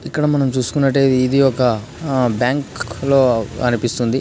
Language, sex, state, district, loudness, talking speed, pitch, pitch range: Telugu, male, Andhra Pradesh, Srikakulam, -17 LUFS, 115 wpm, 130 Hz, 120-140 Hz